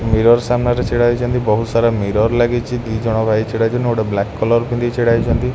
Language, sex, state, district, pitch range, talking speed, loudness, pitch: Odia, male, Odisha, Khordha, 110-120 Hz, 225 wpm, -16 LUFS, 115 Hz